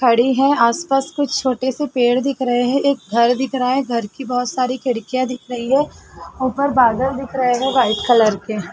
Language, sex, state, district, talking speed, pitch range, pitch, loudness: Hindi, female, Uttar Pradesh, Muzaffarnagar, 220 wpm, 240-270 Hz, 255 Hz, -18 LUFS